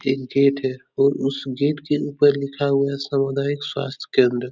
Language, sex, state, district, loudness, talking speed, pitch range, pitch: Hindi, male, Uttar Pradesh, Etah, -21 LUFS, 185 wpm, 135-140 Hz, 140 Hz